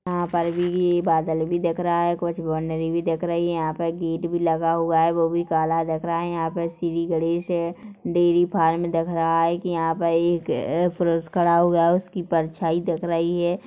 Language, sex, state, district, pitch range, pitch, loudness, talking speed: Hindi, female, Chhattisgarh, Korba, 165-175 Hz, 170 Hz, -23 LUFS, 220 wpm